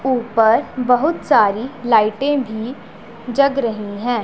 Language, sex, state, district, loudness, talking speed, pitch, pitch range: Hindi, female, Punjab, Pathankot, -17 LUFS, 115 wpm, 240 Hz, 220-260 Hz